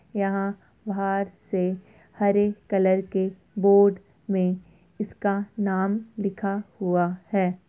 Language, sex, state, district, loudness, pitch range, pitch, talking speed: Hindi, female, Uttar Pradesh, Jyotiba Phule Nagar, -25 LUFS, 185-200 Hz, 195 Hz, 100 wpm